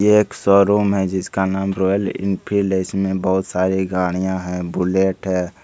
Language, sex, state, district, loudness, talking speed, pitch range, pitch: Hindi, male, Bihar, Bhagalpur, -19 LUFS, 170 wpm, 95-100 Hz, 95 Hz